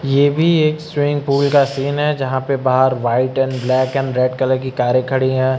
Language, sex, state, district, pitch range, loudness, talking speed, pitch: Hindi, male, Uttar Pradesh, Lucknow, 130-140 Hz, -16 LUFS, 225 wpm, 130 Hz